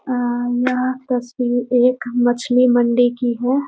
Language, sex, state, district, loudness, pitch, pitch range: Hindi, female, Bihar, Muzaffarpur, -18 LUFS, 245 Hz, 245-255 Hz